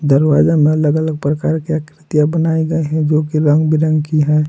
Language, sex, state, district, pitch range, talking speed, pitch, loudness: Hindi, male, Jharkhand, Palamu, 150-160 Hz, 200 wpm, 155 Hz, -15 LUFS